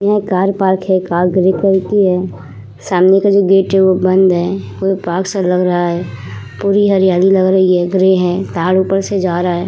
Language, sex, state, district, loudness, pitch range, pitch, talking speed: Hindi, female, Uttar Pradesh, Muzaffarnagar, -13 LUFS, 180-195 Hz, 185 Hz, 225 wpm